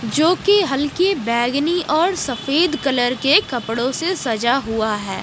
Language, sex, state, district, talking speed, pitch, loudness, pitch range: Hindi, female, Odisha, Malkangiri, 150 wpm, 270 Hz, -18 LUFS, 235-335 Hz